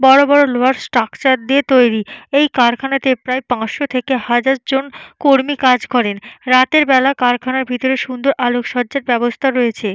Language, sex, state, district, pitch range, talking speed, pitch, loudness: Bengali, female, Jharkhand, Jamtara, 245-270 Hz, 140 wpm, 255 Hz, -15 LUFS